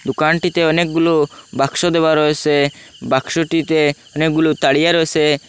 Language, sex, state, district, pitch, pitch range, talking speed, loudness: Bengali, male, Assam, Hailakandi, 155 Hz, 150-165 Hz, 100 wpm, -16 LUFS